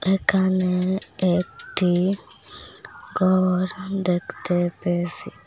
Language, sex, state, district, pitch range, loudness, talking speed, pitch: Bengali, female, Assam, Hailakandi, 175-185 Hz, -22 LUFS, 55 wpm, 185 Hz